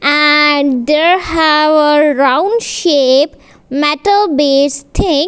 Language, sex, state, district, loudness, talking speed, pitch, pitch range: English, female, Punjab, Kapurthala, -11 LUFS, 100 wpm, 295 Hz, 285-325 Hz